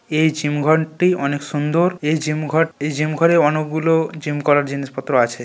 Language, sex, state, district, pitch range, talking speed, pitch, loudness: Bengali, male, West Bengal, North 24 Parganas, 145-160 Hz, 165 wpm, 155 Hz, -18 LUFS